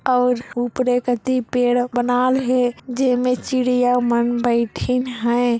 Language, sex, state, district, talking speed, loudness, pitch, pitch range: Chhattisgarhi, female, Chhattisgarh, Sarguja, 120 wpm, -19 LUFS, 245 Hz, 245-255 Hz